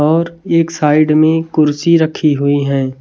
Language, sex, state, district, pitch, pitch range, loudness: Hindi, male, Chhattisgarh, Raipur, 155 Hz, 145-165 Hz, -13 LUFS